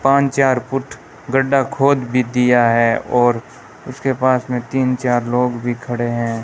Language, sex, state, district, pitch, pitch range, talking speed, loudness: Hindi, male, Rajasthan, Bikaner, 125 Hz, 120-135 Hz, 170 wpm, -17 LUFS